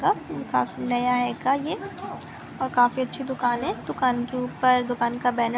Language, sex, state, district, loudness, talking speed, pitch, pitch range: Hindi, female, Andhra Pradesh, Anantapur, -25 LUFS, 160 wpm, 250 Hz, 245-260 Hz